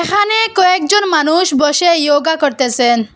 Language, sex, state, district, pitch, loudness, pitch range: Bengali, female, Assam, Hailakandi, 320 Hz, -12 LUFS, 290-370 Hz